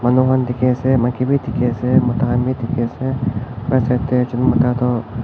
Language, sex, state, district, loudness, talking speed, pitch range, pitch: Nagamese, male, Nagaland, Kohima, -17 LUFS, 215 wpm, 120-130 Hz, 125 Hz